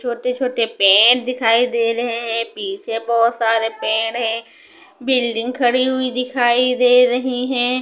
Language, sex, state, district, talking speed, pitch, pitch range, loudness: Hindi, female, Punjab, Pathankot, 145 wpm, 245 Hz, 230-250 Hz, -17 LUFS